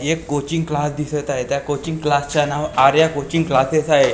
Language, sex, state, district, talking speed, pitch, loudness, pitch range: Marathi, male, Maharashtra, Gondia, 230 wpm, 150 Hz, -18 LUFS, 145-160 Hz